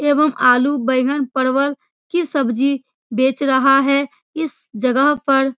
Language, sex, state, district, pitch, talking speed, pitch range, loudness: Hindi, female, Bihar, Supaul, 275 Hz, 130 wpm, 260-285 Hz, -17 LUFS